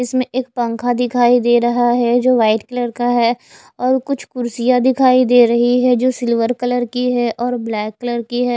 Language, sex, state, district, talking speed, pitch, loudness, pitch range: Hindi, female, Chhattisgarh, Raipur, 205 wpm, 245 Hz, -16 LUFS, 240-250 Hz